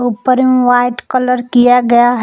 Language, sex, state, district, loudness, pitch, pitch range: Hindi, female, Jharkhand, Palamu, -11 LUFS, 245 Hz, 245-250 Hz